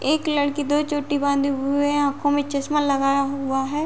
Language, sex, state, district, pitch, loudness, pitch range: Hindi, female, Uttar Pradesh, Muzaffarnagar, 285 Hz, -22 LUFS, 275-290 Hz